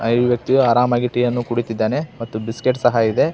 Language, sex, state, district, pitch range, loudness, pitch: Kannada, male, Karnataka, Belgaum, 115-125 Hz, -18 LUFS, 120 Hz